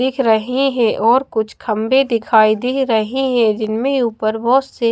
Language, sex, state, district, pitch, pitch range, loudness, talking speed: Hindi, female, Bihar, Katihar, 235 Hz, 220-265 Hz, -16 LUFS, 170 wpm